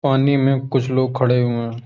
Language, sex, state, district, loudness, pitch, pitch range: Hindi, male, Uttar Pradesh, Hamirpur, -18 LUFS, 130 Hz, 125-135 Hz